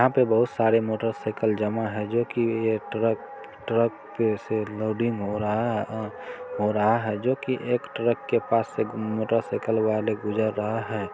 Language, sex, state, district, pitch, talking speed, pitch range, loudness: Maithili, male, Bihar, Supaul, 110 Hz, 160 wpm, 110-115 Hz, -26 LUFS